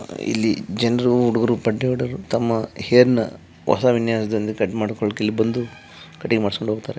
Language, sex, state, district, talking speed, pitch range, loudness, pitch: Kannada, male, Karnataka, Chamarajanagar, 130 wpm, 110-120 Hz, -20 LUFS, 115 Hz